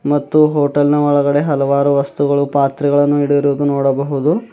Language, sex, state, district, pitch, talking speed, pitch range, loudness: Kannada, male, Karnataka, Bidar, 145 Hz, 120 wpm, 140-145 Hz, -14 LUFS